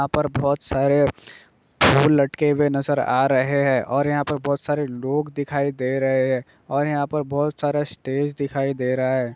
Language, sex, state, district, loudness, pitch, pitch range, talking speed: Hindi, male, Bihar, Gopalganj, -21 LUFS, 140 Hz, 135-145 Hz, 205 wpm